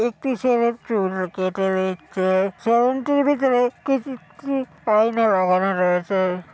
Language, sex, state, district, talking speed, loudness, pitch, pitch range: Bengali, female, West Bengal, Paschim Medinipur, 110 wpm, -21 LUFS, 220 Hz, 185-255 Hz